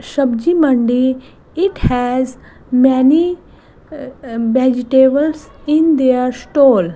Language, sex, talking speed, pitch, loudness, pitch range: English, female, 95 wpm, 260 Hz, -14 LUFS, 250-295 Hz